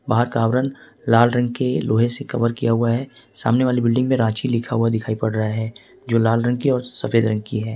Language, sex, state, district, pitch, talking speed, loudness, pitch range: Hindi, male, Jharkhand, Ranchi, 115 Hz, 245 wpm, -20 LUFS, 115-125 Hz